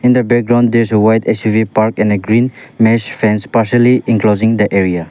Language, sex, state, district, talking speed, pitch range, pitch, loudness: English, male, Nagaland, Dimapur, 200 wpm, 105-120 Hz, 110 Hz, -12 LUFS